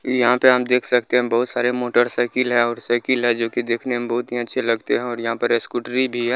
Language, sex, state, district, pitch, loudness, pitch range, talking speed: Maithili, male, Bihar, Muzaffarpur, 120 Hz, -19 LUFS, 120-125 Hz, 265 wpm